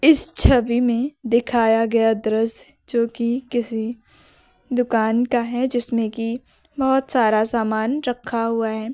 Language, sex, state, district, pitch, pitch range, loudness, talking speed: Hindi, female, Uttar Pradesh, Lucknow, 235 Hz, 225-245 Hz, -20 LUFS, 135 wpm